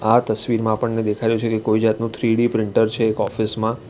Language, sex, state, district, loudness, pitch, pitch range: Gujarati, male, Gujarat, Valsad, -20 LUFS, 110 Hz, 110-115 Hz